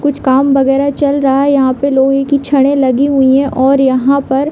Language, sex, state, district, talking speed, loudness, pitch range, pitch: Hindi, female, Jharkhand, Jamtara, 240 wpm, -11 LUFS, 265-280 Hz, 275 Hz